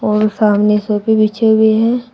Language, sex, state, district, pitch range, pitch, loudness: Hindi, female, Uttar Pradesh, Shamli, 210-220 Hz, 215 Hz, -13 LUFS